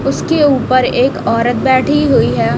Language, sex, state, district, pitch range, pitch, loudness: Hindi, female, Chhattisgarh, Raipur, 255-290 Hz, 260 Hz, -12 LUFS